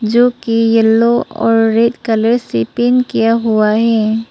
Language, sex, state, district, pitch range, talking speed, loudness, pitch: Hindi, female, Arunachal Pradesh, Papum Pare, 220-235 Hz, 155 wpm, -13 LUFS, 225 Hz